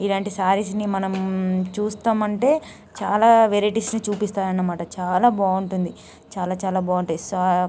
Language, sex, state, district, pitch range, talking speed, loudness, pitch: Telugu, female, Andhra Pradesh, Guntur, 185-210 Hz, 115 wpm, -21 LUFS, 195 Hz